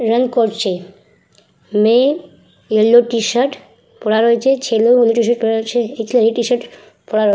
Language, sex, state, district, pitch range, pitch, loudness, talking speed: Bengali, female, West Bengal, Purulia, 220-240 Hz, 230 Hz, -15 LUFS, 140 wpm